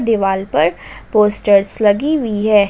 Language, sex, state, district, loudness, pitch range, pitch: Hindi, female, Jharkhand, Ranchi, -15 LUFS, 200-225 Hz, 210 Hz